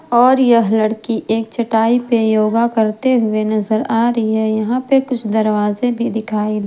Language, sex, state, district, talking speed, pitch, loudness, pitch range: Hindi, female, Jharkhand, Garhwa, 170 wpm, 225 Hz, -15 LUFS, 215-240 Hz